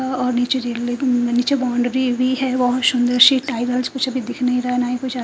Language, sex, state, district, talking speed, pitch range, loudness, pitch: Hindi, female, Punjab, Fazilka, 250 wpm, 245-260 Hz, -18 LUFS, 250 Hz